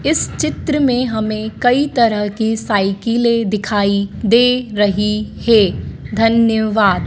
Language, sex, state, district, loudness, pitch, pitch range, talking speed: Hindi, female, Madhya Pradesh, Dhar, -15 LUFS, 220 Hz, 205-235 Hz, 110 wpm